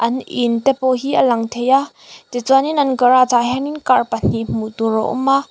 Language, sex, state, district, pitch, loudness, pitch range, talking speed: Mizo, female, Mizoram, Aizawl, 250 Hz, -16 LUFS, 230-270 Hz, 230 wpm